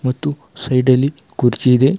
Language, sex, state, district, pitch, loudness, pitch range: Kannada, male, Karnataka, Bidar, 130 Hz, -16 LUFS, 125-145 Hz